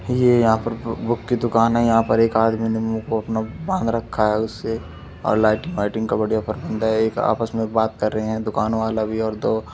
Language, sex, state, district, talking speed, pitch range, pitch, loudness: Hindi, male, Uttar Pradesh, Muzaffarnagar, 245 wpm, 110-115 Hz, 110 Hz, -21 LUFS